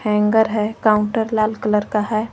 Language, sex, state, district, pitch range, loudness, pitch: Hindi, female, Jharkhand, Garhwa, 210-220 Hz, -18 LUFS, 215 Hz